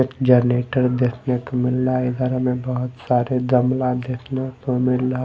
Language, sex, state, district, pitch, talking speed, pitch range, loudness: Hindi, male, Delhi, New Delhi, 125 Hz, 170 wpm, 125-130 Hz, -20 LUFS